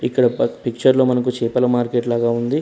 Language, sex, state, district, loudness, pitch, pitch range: Telugu, male, Telangana, Hyderabad, -18 LUFS, 120 Hz, 120-125 Hz